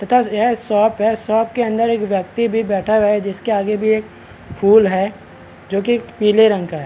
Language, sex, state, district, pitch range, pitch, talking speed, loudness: Hindi, male, Chhattisgarh, Balrampur, 200-225 Hz, 215 Hz, 220 wpm, -16 LUFS